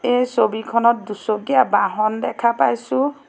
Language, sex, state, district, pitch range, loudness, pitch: Assamese, female, Assam, Sonitpur, 215-250 Hz, -19 LUFS, 235 Hz